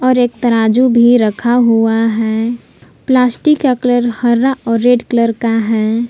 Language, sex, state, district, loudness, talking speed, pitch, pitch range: Hindi, female, Jharkhand, Palamu, -12 LUFS, 155 wpm, 235 Hz, 225-245 Hz